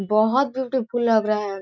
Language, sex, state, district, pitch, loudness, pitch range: Hindi, female, Chhattisgarh, Korba, 225 Hz, -21 LUFS, 215-260 Hz